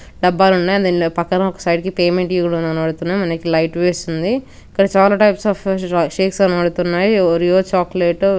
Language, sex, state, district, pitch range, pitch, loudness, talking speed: Telugu, female, Telangana, Nalgonda, 170-195 Hz, 180 Hz, -16 LUFS, 155 wpm